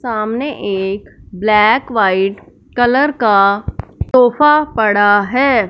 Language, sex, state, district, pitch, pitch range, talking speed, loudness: Hindi, male, Punjab, Fazilka, 220 Hz, 200-255 Hz, 95 wpm, -13 LUFS